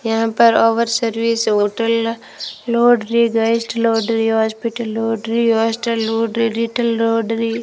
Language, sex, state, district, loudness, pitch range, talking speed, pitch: Hindi, female, Rajasthan, Bikaner, -17 LUFS, 225-230 Hz, 120 wpm, 230 Hz